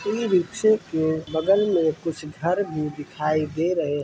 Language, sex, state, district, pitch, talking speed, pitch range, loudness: Hindi, male, Bihar, Saran, 160 Hz, 180 wpm, 155-185 Hz, -23 LUFS